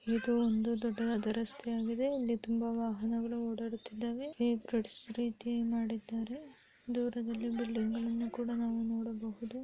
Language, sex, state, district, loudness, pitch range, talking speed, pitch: Kannada, female, Karnataka, Bellary, -36 LUFS, 230-235 Hz, 110 wpm, 230 Hz